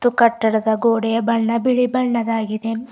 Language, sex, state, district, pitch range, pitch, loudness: Kannada, female, Karnataka, Bidar, 225-240 Hz, 230 Hz, -18 LUFS